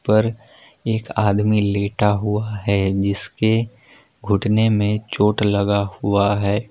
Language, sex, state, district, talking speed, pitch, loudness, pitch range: Hindi, male, Jharkhand, Palamu, 115 wpm, 105 Hz, -19 LUFS, 100-110 Hz